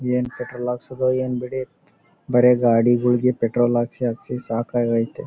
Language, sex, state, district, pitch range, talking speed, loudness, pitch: Kannada, male, Karnataka, Bellary, 120-125 Hz, 135 wpm, -21 LUFS, 125 Hz